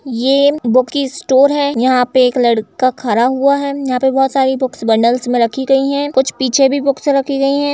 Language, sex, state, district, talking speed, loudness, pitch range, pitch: Hindi, female, Uttar Pradesh, Jalaun, 225 wpm, -14 LUFS, 250-275 Hz, 265 Hz